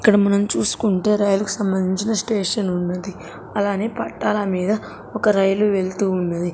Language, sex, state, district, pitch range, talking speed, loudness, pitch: Telugu, female, Andhra Pradesh, Sri Satya Sai, 185-210 Hz, 130 wpm, -20 LUFS, 200 Hz